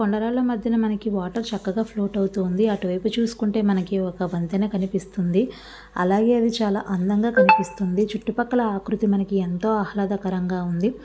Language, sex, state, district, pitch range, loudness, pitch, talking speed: Telugu, female, Andhra Pradesh, Visakhapatnam, 190-220 Hz, -23 LUFS, 205 Hz, 145 wpm